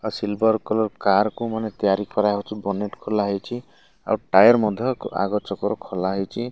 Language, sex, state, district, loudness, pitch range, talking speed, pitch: Odia, male, Odisha, Malkangiri, -22 LUFS, 100-110 Hz, 165 wpm, 105 Hz